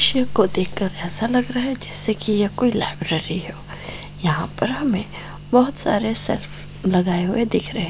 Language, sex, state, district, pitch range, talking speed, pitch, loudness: Hindi, female, Bihar, Sitamarhi, 180-235 Hz, 180 wpm, 205 Hz, -18 LUFS